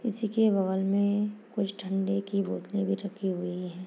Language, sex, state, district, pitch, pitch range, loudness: Hindi, female, Chhattisgarh, Bastar, 200 Hz, 190-205 Hz, -29 LUFS